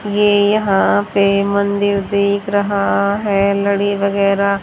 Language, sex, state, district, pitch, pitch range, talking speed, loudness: Hindi, female, Haryana, Jhajjar, 200 Hz, 200-205 Hz, 115 wpm, -15 LUFS